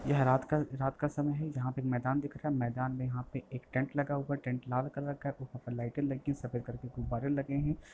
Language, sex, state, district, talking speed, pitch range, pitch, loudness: Bhojpuri, male, Uttar Pradesh, Gorakhpur, 270 wpm, 125-145 Hz, 135 Hz, -35 LUFS